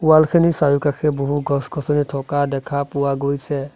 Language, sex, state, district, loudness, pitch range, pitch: Assamese, male, Assam, Sonitpur, -19 LUFS, 140-150 Hz, 145 Hz